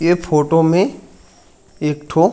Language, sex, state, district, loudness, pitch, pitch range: Chhattisgarhi, male, Chhattisgarh, Raigarh, -16 LUFS, 165 Hz, 150-175 Hz